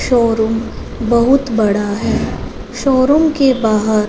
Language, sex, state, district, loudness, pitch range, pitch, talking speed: Hindi, female, Punjab, Fazilka, -14 LUFS, 220-260 Hz, 230 Hz, 100 wpm